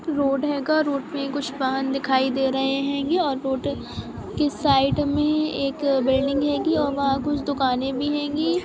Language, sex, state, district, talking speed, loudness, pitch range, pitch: Hindi, female, Bihar, Sitamarhi, 160 wpm, -23 LUFS, 270-295 Hz, 280 Hz